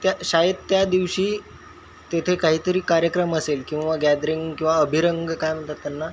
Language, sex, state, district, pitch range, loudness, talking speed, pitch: Marathi, male, Maharashtra, Chandrapur, 155-180 Hz, -22 LUFS, 165 wpm, 165 Hz